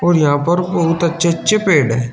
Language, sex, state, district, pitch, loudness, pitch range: Hindi, male, Uttar Pradesh, Shamli, 170 Hz, -15 LUFS, 150-175 Hz